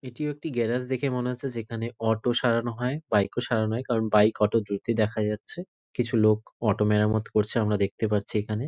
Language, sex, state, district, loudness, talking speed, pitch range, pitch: Bengali, male, West Bengal, North 24 Parganas, -26 LUFS, 200 wpm, 105-125 Hz, 115 Hz